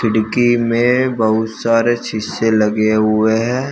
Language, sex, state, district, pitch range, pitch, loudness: Hindi, male, Uttar Pradesh, Shamli, 110-120 Hz, 115 Hz, -15 LUFS